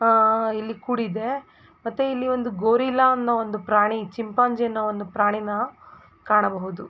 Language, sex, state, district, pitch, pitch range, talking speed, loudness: Kannada, female, Karnataka, Mysore, 225 Hz, 210-245 Hz, 130 wpm, -23 LUFS